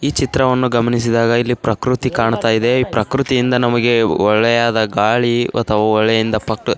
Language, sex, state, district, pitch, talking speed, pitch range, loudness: Kannada, male, Karnataka, Raichur, 120 Hz, 135 wpm, 110-125 Hz, -15 LUFS